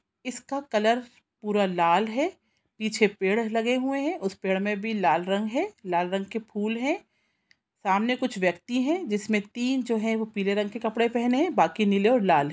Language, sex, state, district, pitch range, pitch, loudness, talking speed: Hindi, female, Chhattisgarh, Sukma, 200-250 Hz, 220 Hz, -26 LUFS, 195 wpm